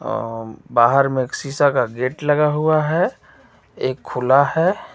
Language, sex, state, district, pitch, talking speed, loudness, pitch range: Hindi, male, Jharkhand, Ranchi, 135 Hz, 155 wpm, -18 LUFS, 125-150 Hz